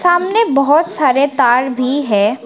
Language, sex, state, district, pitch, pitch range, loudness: Hindi, female, Arunachal Pradesh, Lower Dibang Valley, 275 Hz, 255-330 Hz, -13 LUFS